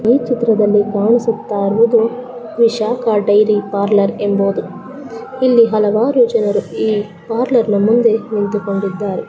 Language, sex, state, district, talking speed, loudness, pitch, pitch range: Kannada, female, Karnataka, Belgaum, 115 wpm, -15 LUFS, 220 Hz, 205-235 Hz